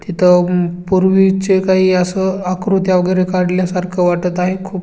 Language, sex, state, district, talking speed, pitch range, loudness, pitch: Marathi, female, Maharashtra, Chandrapur, 160 wpm, 180-190 Hz, -14 LUFS, 185 Hz